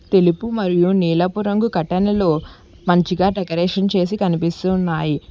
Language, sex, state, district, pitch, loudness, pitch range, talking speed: Telugu, female, Telangana, Hyderabad, 180 Hz, -18 LUFS, 170-195 Hz, 115 wpm